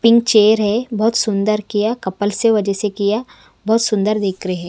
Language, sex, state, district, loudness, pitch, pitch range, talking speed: Hindi, female, Punjab, Kapurthala, -16 LUFS, 210 Hz, 205-225 Hz, 180 wpm